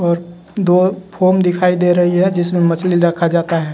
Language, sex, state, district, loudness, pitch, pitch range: Hindi, male, Bihar, West Champaran, -14 LUFS, 175 Hz, 170-185 Hz